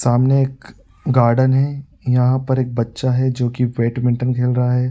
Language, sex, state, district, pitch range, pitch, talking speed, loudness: Hindi, male, Uttar Pradesh, Budaun, 120-130 Hz, 125 Hz, 185 wpm, -18 LUFS